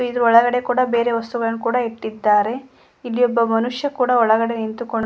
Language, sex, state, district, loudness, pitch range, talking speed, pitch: Kannada, female, Karnataka, Koppal, -18 LUFS, 225-245 Hz, 165 wpm, 235 Hz